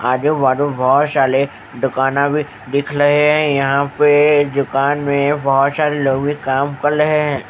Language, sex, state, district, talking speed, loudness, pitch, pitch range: Hindi, male, Haryana, Jhajjar, 170 wpm, -15 LUFS, 140 Hz, 135-145 Hz